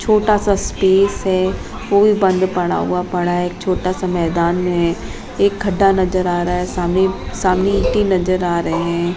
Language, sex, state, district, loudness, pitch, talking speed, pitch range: Hindi, female, Madhya Pradesh, Umaria, -17 LUFS, 185 Hz, 185 wpm, 175-195 Hz